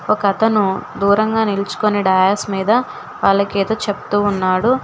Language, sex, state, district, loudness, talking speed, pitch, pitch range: Telugu, female, Telangana, Hyderabad, -16 LUFS, 125 wpm, 205 Hz, 195-215 Hz